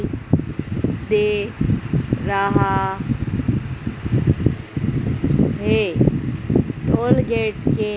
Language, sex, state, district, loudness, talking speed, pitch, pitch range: Hindi, female, Madhya Pradesh, Dhar, -20 LUFS, 40 wpm, 130 Hz, 115-195 Hz